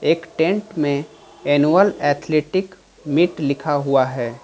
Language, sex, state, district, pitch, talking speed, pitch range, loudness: Hindi, male, Jharkhand, Ranchi, 150 Hz, 120 wpm, 140-175 Hz, -19 LUFS